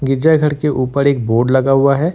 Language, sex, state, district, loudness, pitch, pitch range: Hindi, male, Jharkhand, Ranchi, -14 LUFS, 140 Hz, 130-150 Hz